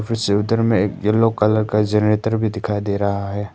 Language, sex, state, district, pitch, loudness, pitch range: Hindi, male, Arunachal Pradesh, Papum Pare, 105 Hz, -18 LUFS, 105-110 Hz